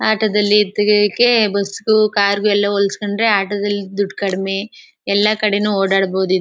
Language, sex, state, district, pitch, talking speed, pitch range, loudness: Kannada, female, Karnataka, Chamarajanagar, 205 Hz, 120 wpm, 200-210 Hz, -16 LUFS